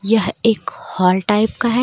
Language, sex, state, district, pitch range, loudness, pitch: Hindi, female, Jharkhand, Deoghar, 200-225 Hz, -17 LUFS, 215 Hz